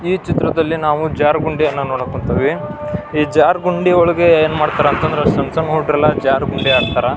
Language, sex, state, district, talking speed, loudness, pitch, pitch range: Kannada, male, Karnataka, Belgaum, 200 wpm, -15 LUFS, 155 Hz, 140-165 Hz